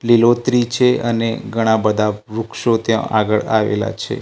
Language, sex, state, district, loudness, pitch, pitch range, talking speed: Gujarati, male, Gujarat, Gandhinagar, -17 LUFS, 115 Hz, 110-120 Hz, 140 wpm